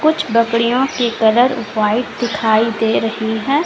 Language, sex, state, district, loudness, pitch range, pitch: Hindi, female, Uttar Pradesh, Lalitpur, -16 LUFS, 220-250 Hz, 230 Hz